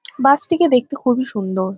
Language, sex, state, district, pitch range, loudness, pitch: Bengali, female, West Bengal, Kolkata, 215-290 Hz, -17 LUFS, 260 Hz